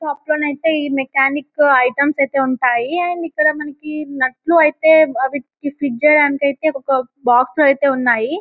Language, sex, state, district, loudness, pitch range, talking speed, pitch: Telugu, female, Telangana, Karimnagar, -16 LUFS, 270-305 Hz, 135 wpm, 285 Hz